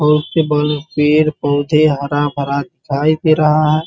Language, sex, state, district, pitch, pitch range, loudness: Hindi, male, Bihar, Muzaffarpur, 150 Hz, 145-155 Hz, -15 LUFS